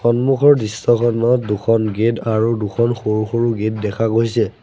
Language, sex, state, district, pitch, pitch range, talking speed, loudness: Assamese, male, Assam, Sonitpur, 115 Hz, 110-120 Hz, 140 wpm, -17 LUFS